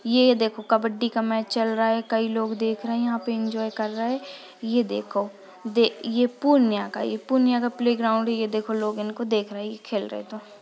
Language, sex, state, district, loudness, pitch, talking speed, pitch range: Hindi, female, Bihar, Purnia, -24 LUFS, 225 Hz, 225 wpm, 215-235 Hz